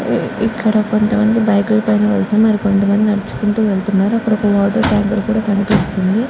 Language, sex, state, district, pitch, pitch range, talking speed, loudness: Telugu, female, Andhra Pradesh, Guntur, 210 Hz, 205-220 Hz, 160 wpm, -15 LUFS